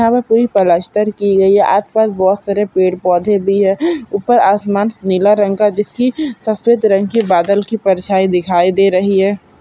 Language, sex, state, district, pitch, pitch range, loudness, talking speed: Hindi, male, Bihar, Purnia, 200 Hz, 190-220 Hz, -13 LUFS, 180 wpm